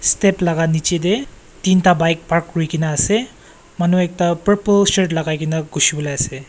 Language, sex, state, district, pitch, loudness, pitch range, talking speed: Nagamese, male, Nagaland, Kohima, 170 Hz, -17 LUFS, 160-185 Hz, 165 wpm